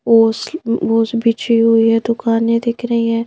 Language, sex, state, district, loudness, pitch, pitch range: Hindi, female, Madhya Pradesh, Bhopal, -15 LUFS, 230 Hz, 225-230 Hz